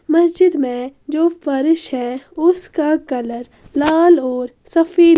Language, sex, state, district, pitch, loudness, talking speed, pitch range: Hindi, female, Haryana, Jhajjar, 310 Hz, -16 LUFS, 115 wpm, 260-340 Hz